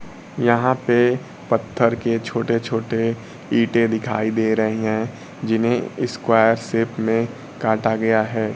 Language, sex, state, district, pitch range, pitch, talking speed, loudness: Hindi, male, Bihar, Kaimur, 110-115 Hz, 115 Hz, 125 wpm, -20 LUFS